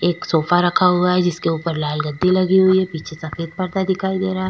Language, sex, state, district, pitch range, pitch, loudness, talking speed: Hindi, female, Goa, North and South Goa, 160-185 Hz, 180 Hz, -18 LUFS, 265 wpm